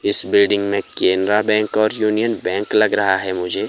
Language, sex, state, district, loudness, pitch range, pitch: Hindi, male, Himachal Pradesh, Shimla, -17 LUFS, 100-110 Hz, 105 Hz